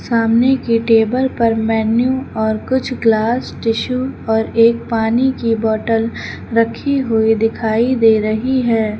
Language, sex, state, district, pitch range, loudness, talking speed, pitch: Hindi, female, Uttar Pradesh, Lucknow, 225-250 Hz, -16 LUFS, 135 wpm, 230 Hz